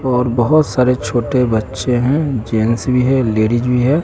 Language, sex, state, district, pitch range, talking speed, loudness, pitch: Hindi, male, Bihar, West Champaran, 115-130 Hz, 180 wpm, -15 LUFS, 125 Hz